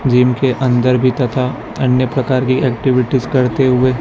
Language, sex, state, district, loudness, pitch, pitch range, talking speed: Hindi, male, Chhattisgarh, Raipur, -14 LUFS, 130 Hz, 125-130 Hz, 165 wpm